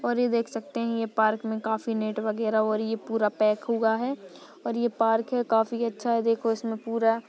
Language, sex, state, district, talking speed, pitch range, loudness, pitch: Hindi, female, Maharashtra, Solapur, 215 wpm, 220-230 Hz, -27 LUFS, 225 Hz